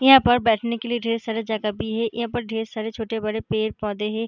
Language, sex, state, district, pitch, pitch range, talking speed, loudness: Hindi, female, Bihar, Darbhanga, 225 Hz, 220-235 Hz, 255 wpm, -23 LUFS